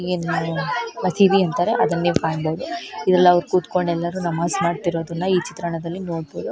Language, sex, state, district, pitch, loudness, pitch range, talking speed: Kannada, female, Karnataka, Shimoga, 175 Hz, -21 LUFS, 170-185 Hz, 130 wpm